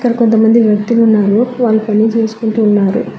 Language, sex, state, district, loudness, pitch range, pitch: Telugu, female, Telangana, Hyderabad, -11 LUFS, 215-230 Hz, 225 Hz